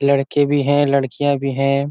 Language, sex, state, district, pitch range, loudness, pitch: Hindi, male, Uttar Pradesh, Ghazipur, 135-145 Hz, -17 LUFS, 140 Hz